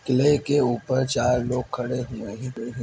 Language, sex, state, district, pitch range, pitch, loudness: Hindi, male, Chhattisgarh, Sarguja, 120-130 Hz, 125 Hz, -24 LUFS